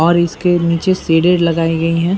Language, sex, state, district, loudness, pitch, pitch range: Hindi, male, Bihar, Saran, -14 LUFS, 170 Hz, 165-175 Hz